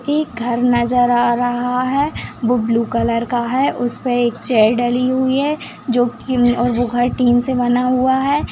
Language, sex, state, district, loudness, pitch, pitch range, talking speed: Hindi, female, Bihar, Madhepura, -16 LUFS, 245 Hz, 240-255 Hz, 190 wpm